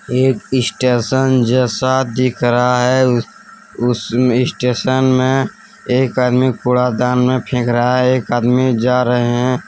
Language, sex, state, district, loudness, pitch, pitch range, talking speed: Hindi, male, Jharkhand, Deoghar, -15 LUFS, 125 Hz, 125-130 Hz, 130 wpm